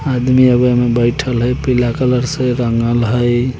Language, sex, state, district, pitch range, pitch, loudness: Bajjika, male, Bihar, Vaishali, 120-125 Hz, 125 Hz, -14 LUFS